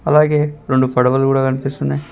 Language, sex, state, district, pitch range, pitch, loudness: Telugu, male, Telangana, Mahabubabad, 130-150 Hz, 135 Hz, -16 LUFS